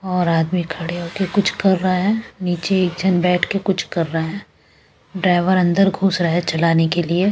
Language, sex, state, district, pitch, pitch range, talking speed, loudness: Hindi, female, Bihar, West Champaran, 180 Hz, 170-190 Hz, 215 wpm, -18 LUFS